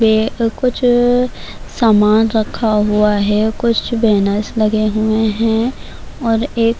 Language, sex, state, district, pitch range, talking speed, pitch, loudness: Urdu, female, Bihar, Kishanganj, 215-235 Hz, 125 wpm, 220 Hz, -15 LUFS